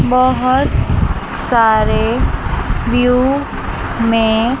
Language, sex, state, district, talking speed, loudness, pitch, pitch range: Hindi, female, Chandigarh, Chandigarh, 50 wpm, -15 LUFS, 250 Hz, 230-255 Hz